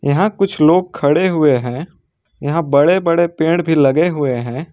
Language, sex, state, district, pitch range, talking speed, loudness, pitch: Hindi, male, Jharkhand, Ranchi, 145-170 Hz, 180 wpm, -15 LUFS, 160 Hz